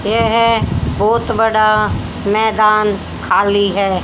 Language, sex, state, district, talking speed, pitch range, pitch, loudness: Hindi, female, Haryana, Rohtak, 90 wpm, 205-225 Hz, 215 Hz, -14 LUFS